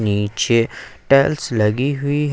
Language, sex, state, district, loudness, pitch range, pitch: Hindi, male, Jharkhand, Ranchi, -18 LUFS, 110-145 Hz, 130 Hz